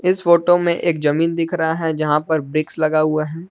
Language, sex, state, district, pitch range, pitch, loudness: Hindi, male, Jharkhand, Palamu, 155-170 Hz, 160 Hz, -18 LUFS